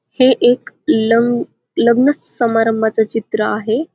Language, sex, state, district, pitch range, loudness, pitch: Marathi, female, Maharashtra, Dhule, 220-245 Hz, -15 LUFS, 230 Hz